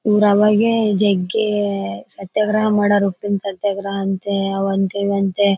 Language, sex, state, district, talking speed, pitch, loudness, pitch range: Kannada, female, Karnataka, Bellary, 105 wpm, 200 Hz, -18 LUFS, 195-210 Hz